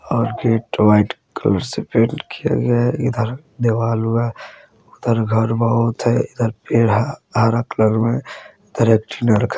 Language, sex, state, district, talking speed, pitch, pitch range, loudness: Bajjika, male, Bihar, Vaishali, 145 wpm, 115 Hz, 115-120 Hz, -18 LUFS